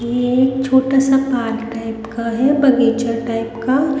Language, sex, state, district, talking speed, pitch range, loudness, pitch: Hindi, female, Haryana, Rohtak, 150 wpm, 230-265 Hz, -17 LUFS, 245 Hz